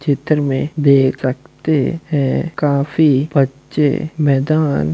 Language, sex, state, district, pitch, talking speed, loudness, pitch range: Hindi, male, Bihar, Samastipur, 145 Hz, 110 wpm, -16 LUFS, 135-155 Hz